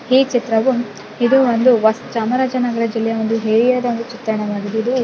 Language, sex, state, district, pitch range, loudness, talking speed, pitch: Kannada, female, Karnataka, Chamarajanagar, 220-250 Hz, -17 LUFS, 85 wpm, 235 Hz